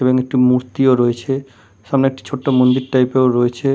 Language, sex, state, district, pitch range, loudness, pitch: Bengali, male, West Bengal, Kolkata, 125-135 Hz, -16 LUFS, 130 Hz